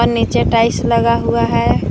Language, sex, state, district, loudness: Hindi, female, Uttar Pradesh, Lucknow, -14 LUFS